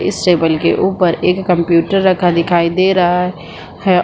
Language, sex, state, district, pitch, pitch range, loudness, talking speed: Hindi, female, Bihar, Supaul, 180 Hz, 170-185 Hz, -13 LUFS, 180 wpm